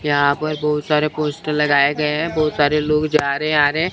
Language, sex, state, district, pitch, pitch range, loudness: Hindi, male, Chandigarh, Chandigarh, 150 Hz, 145-155 Hz, -18 LUFS